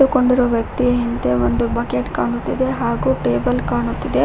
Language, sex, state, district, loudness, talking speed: Kannada, female, Karnataka, Koppal, -18 LUFS, 125 wpm